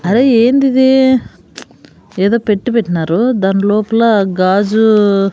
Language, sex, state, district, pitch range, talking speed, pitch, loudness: Telugu, female, Andhra Pradesh, Sri Satya Sai, 195-240 Hz, 90 wpm, 215 Hz, -12 LUFS